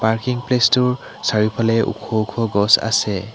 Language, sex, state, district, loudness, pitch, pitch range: Assamese, male, Assam, Hailakandi, -18 LUFS, 115 Hz, 110-125 Hz